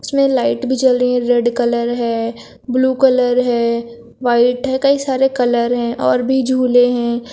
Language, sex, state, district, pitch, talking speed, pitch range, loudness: Hindi, female, Uttar Pradesh, Lucknow, 245 Hz, 180 wpm, 235-260 Hz, -15 LUFS